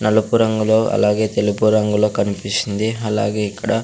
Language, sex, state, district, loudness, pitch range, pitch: Telugu, male, Andhra Pradesh, Sri Satya Sai, -18 LUFS, 105-110 Hz, 105 Hz